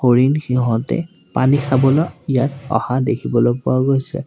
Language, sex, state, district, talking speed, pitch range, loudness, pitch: Assamese, male, Assam, Sonitpur, 125 wpm, 125-140 Hz, -17 LUFS, 130 Hz